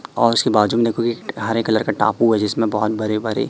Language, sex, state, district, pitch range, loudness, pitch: Hindi, male, Madhya Pradesh, Katni, 105-115 Hz, -18 LUFS, 110 Hz